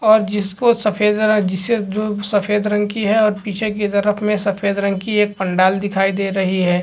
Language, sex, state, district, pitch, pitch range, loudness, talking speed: Hindi, male, Chhattisgarh, Rajnandgaon, 205 Hz, 195-210 Hz, -17 LUFS, 195 wpm